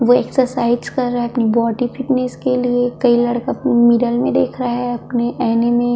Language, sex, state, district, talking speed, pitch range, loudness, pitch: Hindi, female, Chhattisgarh, Kabirdham, 220 wpm, 240-250 Hz, -17 LUFS, 245 Hz